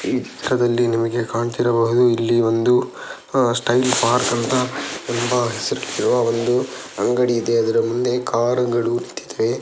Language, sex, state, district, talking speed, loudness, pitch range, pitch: Kannada, male, Karnataka, Dakshina Kannada, 125 wpm, -19 LUFS, 115-125 Hz, 120 Hz